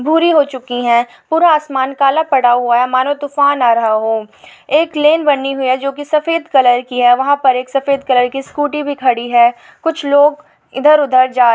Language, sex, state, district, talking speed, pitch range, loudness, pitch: Hindi, female, Uttar Pradesh, Etah, 210 wpm, 245-295 Hz, -13 LUFS, 275 Hz